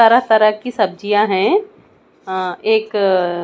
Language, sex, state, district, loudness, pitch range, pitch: Hindi, female, Chandigarh, Chandigarh, -16 LUFS, 190-225 Hz, 210 Hz